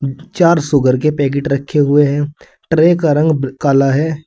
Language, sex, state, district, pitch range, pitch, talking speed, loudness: Hindi, male, Uttar Pradesh, Saharanpur, 140-155 Hz, 145 Hz, 170 wpm, -14 LUFS